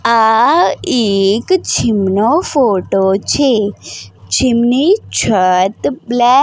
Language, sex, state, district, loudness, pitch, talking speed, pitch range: Gujarati, female, Gujarat, Gandhinagar, -13 LUFS, 225 Hz, 95 wpm, 195-260 Hz